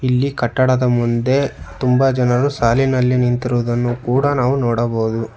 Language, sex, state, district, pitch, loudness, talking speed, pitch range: Kannada, male, Karnataka, Bangalore, 125 Hz, -17 LUFS, 110 wpm, 120-130 Hz